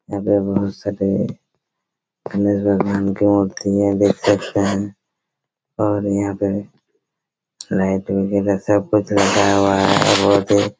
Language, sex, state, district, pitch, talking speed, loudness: Hindi, male, Chhattisgarh, Raigarh, 100 Hz, 140 wpm, -18 LUFS